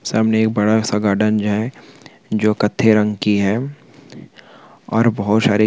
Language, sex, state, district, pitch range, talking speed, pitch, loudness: Hindi, male, Bihar, Begusarai, 105-110 Hz, 200 wpm, 110 Hz, -17 LUFS